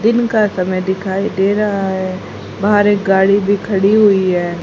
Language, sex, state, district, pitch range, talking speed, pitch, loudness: Hindi, female, Haryana, Rohtak, 190-205 Hz, 180 wpm, 195 Hz, -14 LUFS